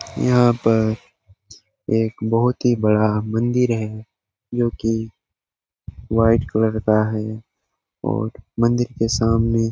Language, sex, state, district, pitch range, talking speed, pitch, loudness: Hindi, male, Jharkhand, Jamtara, 110-115 Hz, 115 wpm, 110 Hz, -20 LUFS